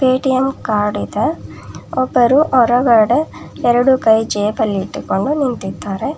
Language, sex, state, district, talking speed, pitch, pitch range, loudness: Kannada, female, Karnataka, Bangalore, 85 wpm, 240 Hz, 215-260 Hz, -15 LUFS